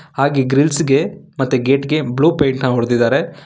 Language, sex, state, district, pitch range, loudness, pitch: Kannada, male, Karnataka, Bangalore, 130-155 Hz, -16 LUFS, 140 Hz